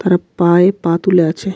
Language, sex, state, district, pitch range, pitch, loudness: Bengali, male, West Bengal, Cooch Behar, 170-190 Hz, 180 Hz, -13 LUFS